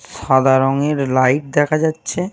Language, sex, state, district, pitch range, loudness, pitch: Bengali, male, Jharkhand, Jamtara, 130-155 Hz, -16 LUFS, 140 Hz